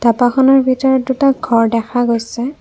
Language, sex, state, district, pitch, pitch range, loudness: Assamese, female, Assam, Kamrup Metropolitan, 245 Hz, 235-265 Hz, -14 LUFS